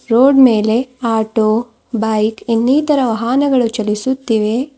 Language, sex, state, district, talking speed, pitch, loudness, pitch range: Kannada, female, Karnataka, Bidar, 90 wpm, 235 Hz, -14 LUFS, 220-260 Hz